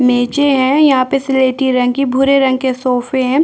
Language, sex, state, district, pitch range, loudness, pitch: Hindi, female, Chhattisgarh, Bastar, 255-275 Hz, -13 LUFS, 265 Hz